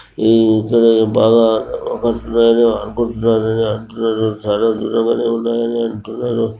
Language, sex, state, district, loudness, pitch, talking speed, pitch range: Telugu, male, Telangana, Nalgonda, -15 LUFS, 115 Hz, 100 wpm, 110-115 Hz